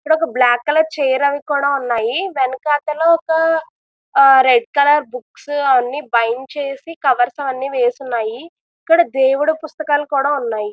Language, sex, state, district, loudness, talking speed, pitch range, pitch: Telugu, female, Andhra Pradesh, Visakhapatnam, -16 LUFS, 145 wpm, 255-305 Hz, 280 Hz